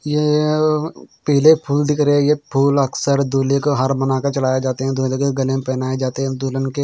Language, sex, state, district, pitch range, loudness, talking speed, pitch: Hindi, male, Bihar, Katihar, 135-145 Hz, -17 LUFS, 220 wpm, 140 Hz